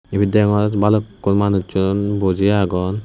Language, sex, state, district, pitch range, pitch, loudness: Chakma, male, Tripura, West Tripura, 95-105 Hz, 100 Hz, -17 LUFS